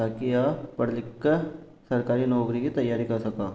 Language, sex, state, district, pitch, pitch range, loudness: Marwari, male, Rajasthan, Nagaur, 120 Hz, 115-135 Hz, -27 LUFS